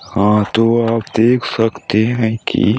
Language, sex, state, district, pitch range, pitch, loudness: Hindi, male, Chhattisgarh, Balrampur, 110-115 Hz, 115 Hz, -15 LUFS